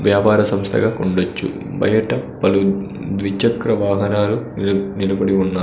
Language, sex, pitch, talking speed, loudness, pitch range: Telugu, male, 100 Hz, 105 wpm, -18 LUFS, 95-105 Hz